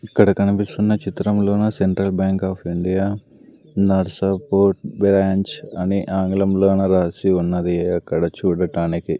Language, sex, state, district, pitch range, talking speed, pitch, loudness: Telugu, male, Andhra Pradesh, Sri Satya Sai, 90-100 Hz, 100 wpm, 95 Hz, -19 LUFS